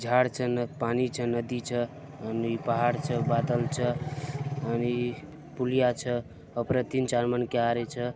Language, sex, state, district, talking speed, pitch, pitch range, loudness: Halbi, male, Chhattisgarh, Bastar, 145 wpm, 120 Hz, 120-130 Hz, -29 LUFS